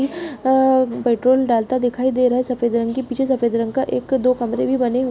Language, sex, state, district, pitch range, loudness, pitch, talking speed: Hindi, female, Chhattisgarh, Bastar, 240-265 Hz, -18 LUFS, 255 Hz, 235 wpm